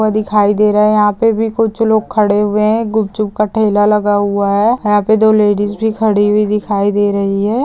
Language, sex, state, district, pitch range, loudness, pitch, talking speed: Hindi, female, Maharashtra, Nagpur, 205-220 Hz, -13 LUFS, 210 Hz, 225 wpm